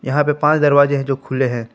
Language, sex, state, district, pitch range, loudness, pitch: Hindi, male, Jharkhand, Palamu, 130-150 Hz, -16 LUFS, 140 Hz